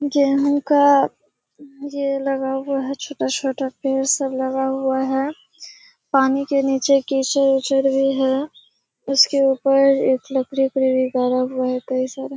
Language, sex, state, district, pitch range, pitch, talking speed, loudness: Hindi, female, Bihar, Kishanganj, 265-275 Hz, 270 Hz, 140 wpm, -19 LUFS